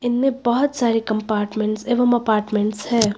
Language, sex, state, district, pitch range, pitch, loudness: Hindi, female, Uttar Pradesh, Lucknow, 215-245 Hz, 225 Hz, -20 LUFS